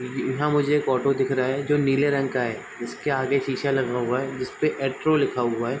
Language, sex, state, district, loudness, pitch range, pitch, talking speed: Hindi, male, Bihar, Sitamarhi, -24 LUFS, 130-140 Hz, 135 Hz, 240 wpm